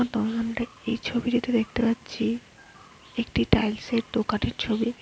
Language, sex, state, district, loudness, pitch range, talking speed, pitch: Bengali, female, West Bengal, Alipurduar, -27 LUFS, 225-240 Hz, 110 wpm, 230 Hz